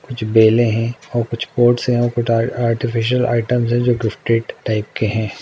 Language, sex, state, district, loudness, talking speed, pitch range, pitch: Hindi, male, Bihar, Gaya, -17 LUFS, 200 wpm, 115-120 Hz, 115 Hz